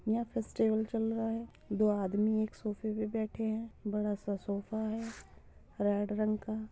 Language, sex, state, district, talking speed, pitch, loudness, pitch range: Hindi, female, Uttar Pradesh, Muzaffarnagar, 170 wpm, 215 Hz, -35 LUFS, 210-225 Hz